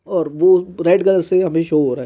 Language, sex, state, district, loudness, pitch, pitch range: Hindi, male, Jharkhand, Jamtara, -15 LUFS, 175 Hz, 160-185 Hz